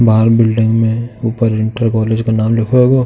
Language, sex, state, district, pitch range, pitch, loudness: Hindi, male, Uttar Pradesh, Jalaun, 110-115 Hz, 115 Hz, -13 LUFS